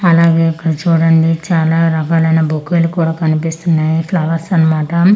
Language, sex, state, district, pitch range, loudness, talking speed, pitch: Telugu, female, Andhra Pradesh, Manyam, 160-170 Hz, -13 LUFS, 140 wpm, 165 Hz